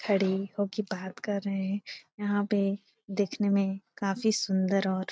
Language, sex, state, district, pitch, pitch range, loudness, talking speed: Hindi, female, Bihar, Supaul, 200 Hz, 195-205 Hz, -30 LUFS, 175 wpm